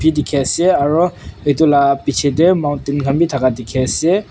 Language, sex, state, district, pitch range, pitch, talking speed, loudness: Nagamese, male, Nagaland, Kohima, 140-160 Hz, 145 Hz, 180 wpm, -15 LUFS